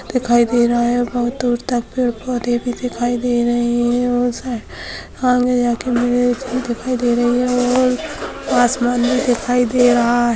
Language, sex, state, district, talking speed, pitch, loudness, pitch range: Hindi, female, Bihar, Sitamarhi, 175 wpm, 245 Hz, -17 LUFS, 240-250 Hz